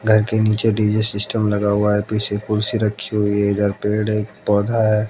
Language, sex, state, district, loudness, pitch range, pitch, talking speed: Hindi, male, Haryana, Jhajjar, -19 LUFS, 105-110 Hz, 105 Hz, 210 wpm